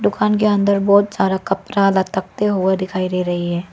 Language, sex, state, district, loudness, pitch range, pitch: Hindi, female, Arunachal Pradesh, Lower Dibang Valley, -17 LUFS, 185-200 Hz, 195 Hz